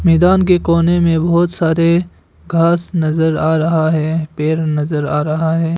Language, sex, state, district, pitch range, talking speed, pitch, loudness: Hindi, male, Arunachal Pradesh, Longding, 160-170 Hz, 165 wpm, 165 Hz, -14 LUFS